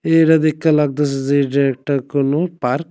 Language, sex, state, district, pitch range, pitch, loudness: Bengali, male, Tripura, West Tripura, 140-160 Hz, 145 Hz, -16 LUFS